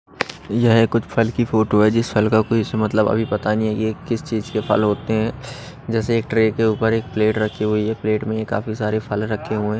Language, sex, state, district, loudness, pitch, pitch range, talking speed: Hindi, male, Odisha, Nuapada, -20 LUFS, 110 Hz, 105-115 Hz, 255 wpm